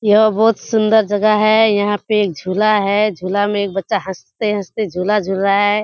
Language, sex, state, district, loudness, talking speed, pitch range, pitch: Hindi, female, Bihar, Kishanganj, -16 LUFS, 195 wpm, 195-215 Hz, 205 Hz